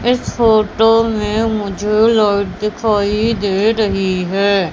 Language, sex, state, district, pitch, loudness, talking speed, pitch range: Hindi, female, Madhya Pradesh, Katni, 210 Hz, -15 LUFS, 115 wpm, 200-225 Hz